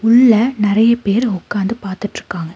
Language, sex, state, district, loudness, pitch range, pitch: Tamil, female, Tamil Nadu, Nilgiris, -15 LUFS, 200-230 Hz, 210 Hz